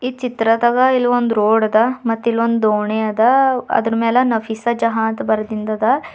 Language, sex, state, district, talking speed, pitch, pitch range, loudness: Kannada, female, Karnataka, Bidar, 145 wpm, 230 Hz, 220-245 Hz, -16 LUFS